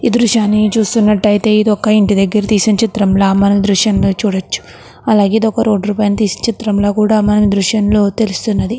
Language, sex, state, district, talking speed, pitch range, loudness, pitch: Telugu, female, Andhra Pradesh, Krishna, 155 wpm, 200-215 Hz, -12 LUFS, 210 Hz